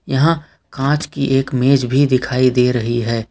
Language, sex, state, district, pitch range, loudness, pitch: Hindi, male, Jharkhand, Ranchi, 125-140 Hz, -16 LUFS, 135 Hz